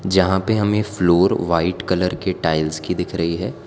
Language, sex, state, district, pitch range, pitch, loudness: Hindi, female, Gujarat, Valsad, 85-95 Hz, 90 Hz, -19 LUFS